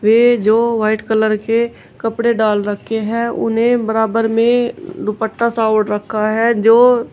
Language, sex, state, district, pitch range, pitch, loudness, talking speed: Hindi, female, Uttar Pradesh, Shamli, 215-235 Hz, 225 Hz, -15 LUFS, 150 wpm